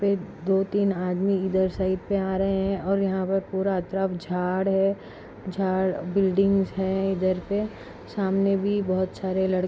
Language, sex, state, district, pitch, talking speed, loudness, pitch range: Hindi, female, Chhattisgarh, Rajnandgaon, 190 Hz, 160 wpm, -25 LUFS, 185-195 Hz